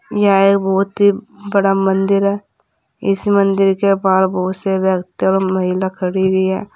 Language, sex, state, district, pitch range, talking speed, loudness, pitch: Hindi, female, Uttar Pradesh, Saharanpur, 190-200 Hz, 160 wpm, -15 LUFS, 195 Hz